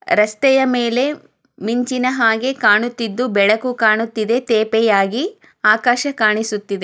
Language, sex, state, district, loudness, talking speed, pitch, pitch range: Kannada, female, Karnataka, Chamarajanagar, -16 LUFS, 90 wpm, 230 Hz, 215-255 Hz